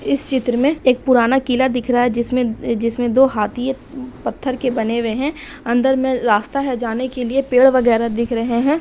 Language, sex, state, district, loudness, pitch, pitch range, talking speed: Hindi, female, Bihar, Saharsa, -17 LUFS, 250 Hz, 235-265 Hz, 205 wpm